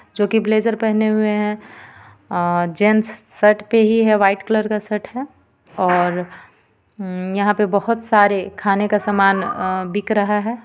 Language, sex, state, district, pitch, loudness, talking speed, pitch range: Hindi, female, Jharkhand, Ranchi, 210 Hz, -18 LUFS, 165 wpm, 195-215 Hz